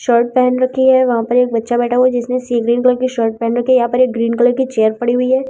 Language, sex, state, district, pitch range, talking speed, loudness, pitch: Hindi, female, Delhi, New Delhi, 235-255 Hz, 295 wpm, -14 LUFS, 245 Hz